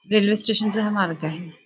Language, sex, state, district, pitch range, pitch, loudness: Marathi, female, Maharashtra, Nagpur, 170-215 Hz, 205 Hz, -21 LUFS